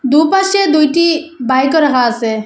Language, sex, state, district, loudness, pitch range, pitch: Bengali, female, Assam, Hailakandi, -12 LUFS, 260-330 Hz, 300 Hz